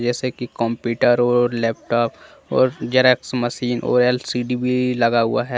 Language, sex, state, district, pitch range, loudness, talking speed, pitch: Hindi, male, Jharkhand, Deoghar, 120-125 Hz, -19 LUFS, 150 wpm, 120 Hz